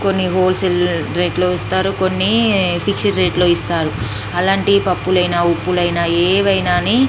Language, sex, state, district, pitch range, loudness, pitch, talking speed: Telugu, female, Andhra Pradesh, Srikakulam, 175-190 Hz, -16 LUFS, 180 Hz, 135 wpm